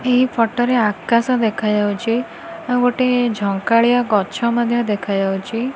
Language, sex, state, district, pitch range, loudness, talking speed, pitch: Odia, female, Odisha, Khordha, 210-245 Hz, -18 LUFS, 125 wpm, 235 Hz